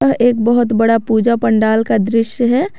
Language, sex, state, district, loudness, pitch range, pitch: Hindi, female, Jharkhand, Garhwa, -14 LUFS, 225-240 Hz, 230 Hz